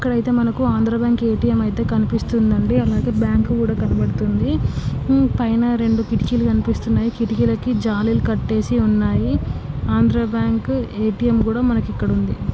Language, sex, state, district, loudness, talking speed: Telugu, female, Andhra Pradesh, Srikakulam, -19 LUFS, 130 wpm